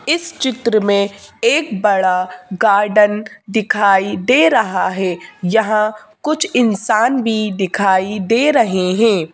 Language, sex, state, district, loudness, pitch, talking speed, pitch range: Hindi, female, Madhya Pradesh, Bhopal, -15 LUFS, 210 Hz, 115 wpm, 195-235 Hz